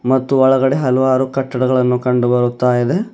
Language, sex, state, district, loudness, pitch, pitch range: Kannada, male, Karnataka, Bidar, -15 LUFS, 130 Hz, 125-130 Hz